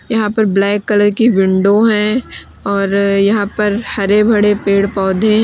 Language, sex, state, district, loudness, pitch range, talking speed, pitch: Hindi, female, Uttar Pradesh, Lalitpur, -13 LUFS, 200-215 Hz, 165 wpm, 205 Hz